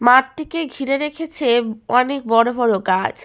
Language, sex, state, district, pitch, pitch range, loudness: Bengali, female, West Bengal, Malda, 250 Hz, 230-280 Hz, -18 LUFS